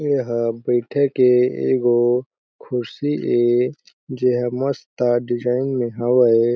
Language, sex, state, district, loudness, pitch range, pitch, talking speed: Chhattisgarhi, male, Chhattisgarh, Jashpur, -19 LUFS, 120-130 Hz, 125 Hz, 100 wpm